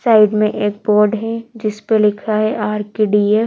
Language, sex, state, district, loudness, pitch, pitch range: Hindi, female, Madhya Pradesh, Bhopal, -16 LUFS, 215 Hz, 210-220 Hz